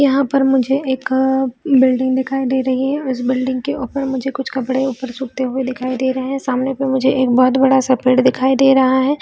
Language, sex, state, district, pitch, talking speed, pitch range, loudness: Hindi, female, Chhattisgarh, Bilaspur, 260 Hz, 230 wpm, 260-270 Hz, -16 LUFS